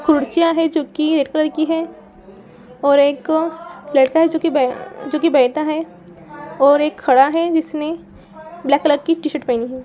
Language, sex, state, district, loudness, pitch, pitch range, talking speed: Hindi, female, Bihar, Saran, -17 LUFS, 300 Hz, 270-320 Hz, 185 wpm